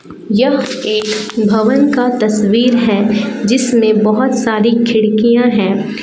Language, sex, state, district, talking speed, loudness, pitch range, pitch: Hindi, female, Jharkhand, Palamu, 110 wpm, -12 LUFS, 215-245 Hz, 225 Hz